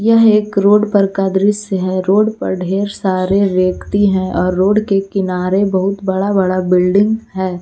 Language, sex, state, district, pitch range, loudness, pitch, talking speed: Hindi, female, Jharkhand, Garhwa, 185-205 Hz, -14 LUFS, 195 Hz, 175 wpm